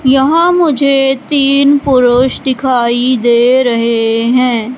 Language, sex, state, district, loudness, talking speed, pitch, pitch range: Hindi, female, Madhya Pradesh, Katni, -10 LUFS, 100 wpm, 255 Hz, 240-275 Hz